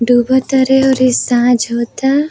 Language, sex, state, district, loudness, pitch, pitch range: Bhojpuri, female, Uttar Pradesh, Varanasi, -12 LUFS, 255 Hz, 240-265 Hz